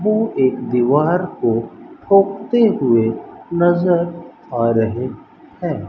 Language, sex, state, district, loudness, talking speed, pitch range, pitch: Hindi, male, Rajasthan, Bikaner, -17 LUFS, 100 wpm, 120-195 Hz, 170 Hz